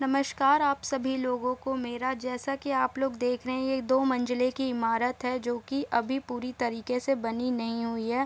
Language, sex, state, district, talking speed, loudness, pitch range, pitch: Hindi, female, Bihar, Gopalganj, 210 wpm, -29 LUFS, 245-265 Hz, 255 Hz